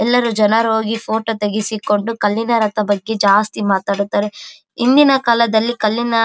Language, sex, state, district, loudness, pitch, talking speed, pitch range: Kannada, female, Karnataka, Bellary, -16 LUFS, 220 Hz, 135 wpm, 210-230 Hz